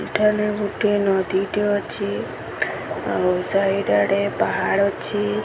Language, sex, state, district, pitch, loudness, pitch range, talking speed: Odia, female, Odisha, Sambalpur, 200 Hz, -21 LUFS, 195-210 Hz, 110 wpm